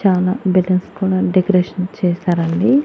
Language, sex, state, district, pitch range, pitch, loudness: Telugu, female, Andhra Pradesh, Annamaya, 180-190 Hz, 185 Hz, -17 LUFS